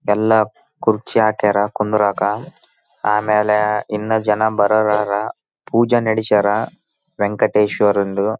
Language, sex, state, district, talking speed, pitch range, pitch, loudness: Kannada, male, Karnataka, Raichur, 70 wpm, 105-110 Hz, 105 Hz, -17 LUFS